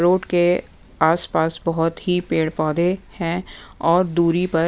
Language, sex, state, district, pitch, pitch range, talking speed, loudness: Hindi, female, Punjab, Pathankot, 170 Hz, 165-180 Hz, 130 wpm, -20 LUFS